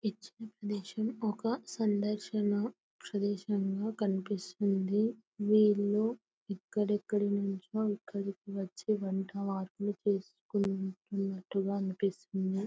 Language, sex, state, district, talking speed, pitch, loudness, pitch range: Telugu, female, Telangana, Karimnagar, 75 wpm, 205 Hz, -34 LUFS, 195-210 Hz